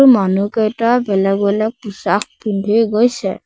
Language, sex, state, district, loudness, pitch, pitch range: Assamese, male, Assam, Sonitpur, -16 LUFS, 210 Hz, 200-230 Hz